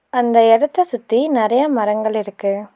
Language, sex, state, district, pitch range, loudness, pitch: Tamil, female, Tamil Nadu, Nilgiris, 215-255 Hz, -16 LUFS, 230 Hz